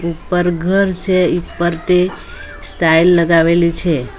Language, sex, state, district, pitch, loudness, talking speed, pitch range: Gujarati, female, Gujarat, Valsad, 175 Hz, -14 LUFS, 115 wpm, 170-180 Hz